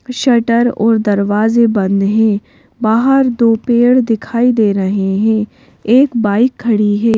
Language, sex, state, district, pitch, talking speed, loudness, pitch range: Hindi, female, Madhya Pradesh, Bhopal, 225 Hz, 135 wpm, -13 LUFS, 210-240 Hz